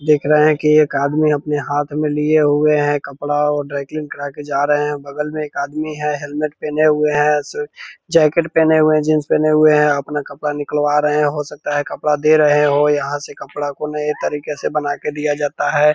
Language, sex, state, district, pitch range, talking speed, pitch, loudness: Hindi, male, Bihar, Purnia, 145-150 Hz, 235 wpm, 150 Hz, -17 LUFS